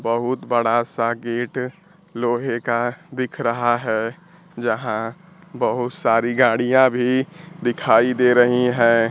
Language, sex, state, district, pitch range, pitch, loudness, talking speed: Hindi, male, Bihar, Kaimur, 115-130 Hz, 120 Hz, -20 LUFS, 120 wpm